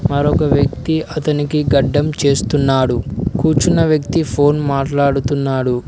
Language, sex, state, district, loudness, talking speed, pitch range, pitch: Telugu, male, Telangana, Mahabubabad, -15 LUFS, 90 wpm, 135-150 Hz, 145 Hz